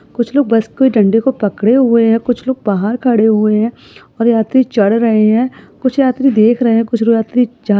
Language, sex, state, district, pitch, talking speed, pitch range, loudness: Hindi, female, Uttar Pradesh, Budaun, 230 Hz, 225 wpm, 220-250 Hz, -13 LUFS